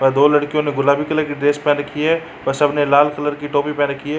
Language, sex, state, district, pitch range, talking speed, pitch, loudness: Hindi, male, Uttar Pradesh, Jalaun, 145-150 Hz, 300 wpm, 145 Hz, -17 LUFS